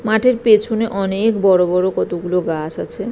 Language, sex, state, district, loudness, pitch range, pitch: Bengali, female, West Bengal, Purulia, -16 LUFS, 180-220 Hz, 195 Hz